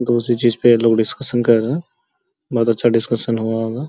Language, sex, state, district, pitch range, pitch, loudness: Hindi, male, Uttar Pradesh, Gorakhpur, 115-130 Hz, 120 Hz, -17 LUFS